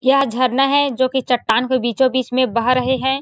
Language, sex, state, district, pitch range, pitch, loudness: Hindi, female, Chhattisgarh, Sarguja, 250-265 Hz, 260 Hz, -17 LUFS